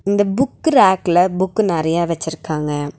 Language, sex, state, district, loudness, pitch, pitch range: Tamil, female, Tamil Nadu, Nilgiris, -17 LUFS, 180 Hz, 160-205 Hz